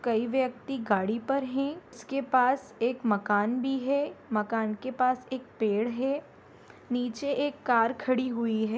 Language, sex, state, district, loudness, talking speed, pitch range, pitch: Bhojpuri, female, Bihar, Saran, -29 LUFS, 170 wpm, 225-270 Hz, 250 Hz